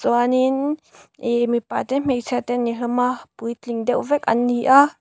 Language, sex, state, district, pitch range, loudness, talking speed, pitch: Mizo, female, Mizoram, Aizawl, 240-260 Hz, -20 LUFS, 190 wpm, 245 Hz